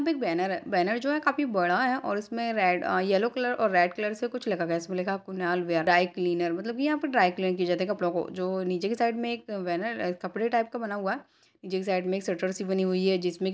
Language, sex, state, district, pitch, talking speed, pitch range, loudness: Hindi, female, Uttarakhand, Tehri Garhwal, 190 Hz, 295 wpm, 180-230 Hz, -28 LUFS